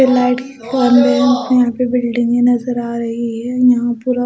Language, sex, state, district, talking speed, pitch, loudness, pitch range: Hindi, female, Odisha, Malkangiri, 125 wpm, 245 Hz, -15 LUFS, 240-255 Hz